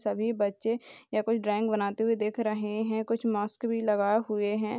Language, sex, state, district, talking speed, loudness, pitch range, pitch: Hindi, male, Bihar, Purnia, 200 wpm, -29 LUFS, 210-225 Hz, 215 Hz